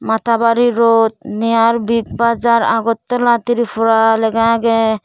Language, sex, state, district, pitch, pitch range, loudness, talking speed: Chakma, female, Tripura, Dhalai, 230 Hz, 225-235 Hz, -14 LUFS, 130 wpm